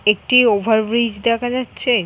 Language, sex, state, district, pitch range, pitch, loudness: Bengali, female, West Bengal, Jhargram, 220-245 Hz, 230 Hz, -16 LUFS